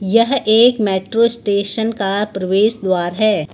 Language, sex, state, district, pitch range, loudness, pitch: Hindi, female, Uttar Pradesh, Lucknow, 195-230 Hz, -16 LUFS, 210 Hz